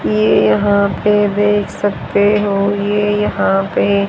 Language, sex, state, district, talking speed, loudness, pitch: Hindi, female, Haryana, Jhajjar, 130 wpm, -14 LUFS, 200 Hz